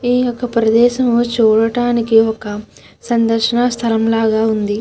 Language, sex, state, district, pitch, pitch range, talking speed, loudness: Telugu, female, Andhra Pradesh, Krishna, 230 Hz, 225-240 Hz, 110 wpm, -14 LUFS